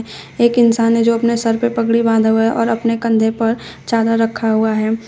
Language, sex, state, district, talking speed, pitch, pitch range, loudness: Hindi, female, Uttar Pradesh, Shamli, 215 wpm, 230 Hz, 225-230 Hz, -15 LUFS